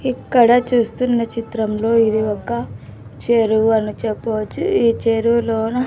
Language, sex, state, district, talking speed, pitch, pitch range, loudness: Telugu, female, Andhra Pradesh, Sri Satya Sai, 110 wpm, 225 Hz, 220-235 Hz, -17 LUFS